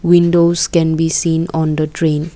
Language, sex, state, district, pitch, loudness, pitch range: English, female, Assam, Kamrup Metropolitan, 165 Hz, -14 LUFS, 160-170 Hz